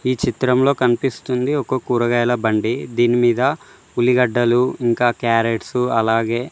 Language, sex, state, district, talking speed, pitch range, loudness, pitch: Telugu, male, Telangana, Mahabubabad, 100 wpm, 120-125 Hz, -18 LUFS, 120 Hz